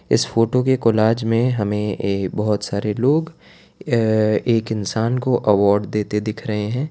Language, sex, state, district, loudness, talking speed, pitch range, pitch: Hindi, male, Gujarat, Valsad, -19 LUFS, 155 wpm, 105-120 Hz, 110 Hz